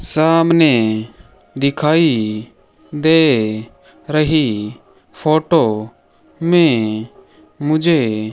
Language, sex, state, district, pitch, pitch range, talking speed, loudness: Hindi, male, Rajasthan, Bikaner, 150 Hz, 110-160 Hz, 50 wpm, -15 LUFS